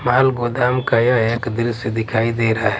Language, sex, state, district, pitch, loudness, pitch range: Hindi, male, Punjab, Pathankot, 115 Hz, -18 LUFS, 115-125 Hz